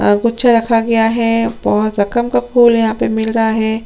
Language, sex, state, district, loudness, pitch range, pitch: Hindi, female, Chhattisgarh, Sukma, -14 LUFS, 220-235 Hz, 230 Hz